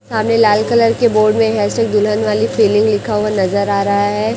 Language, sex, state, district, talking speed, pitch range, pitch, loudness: Hindi, female, Chhattisgarh, Raipur, 235 wpm, 205-220 Hz, 215 Hz, -14 LUFS